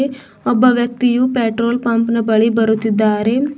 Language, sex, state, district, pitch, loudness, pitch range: Kannada, female, Karnataka, Bidar, 235 Hz, -15 LUFS, 225-250 Hz